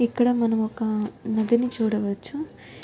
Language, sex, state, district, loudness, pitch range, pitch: Telugu, female, Telangana, Nalgonda, -24 LUFS, 220-240 Hz, 225 Hz